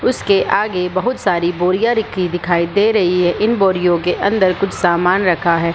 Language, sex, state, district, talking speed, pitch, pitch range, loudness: Hindi, female, Bihar, Supaul, 190 wpm, 180 Hz, 175-200 Hz, -15 LUFS